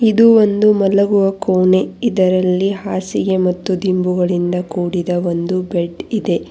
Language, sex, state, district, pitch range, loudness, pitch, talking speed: Kannada, female, Karnataka, Bangalore, 180-200 Hz, -15 LUFS, 185 Hz, 110 wpm